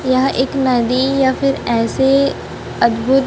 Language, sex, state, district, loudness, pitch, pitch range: Hindi, female, Chhattisgarh, Raipur, -15 LUFS, 260 Hz, 250-270 Hz